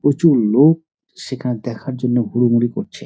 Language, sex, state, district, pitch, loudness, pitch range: Bengali, male, West Bengal, Dakshin Dinajpur, 125 Hz, -17 LUFS, 120-145 Hz